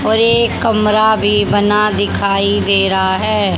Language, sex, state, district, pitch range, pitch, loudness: Hindi, female, Haryana, Charkhi Dadri, 200-220 Hz, 210 Hz, -13 LUFS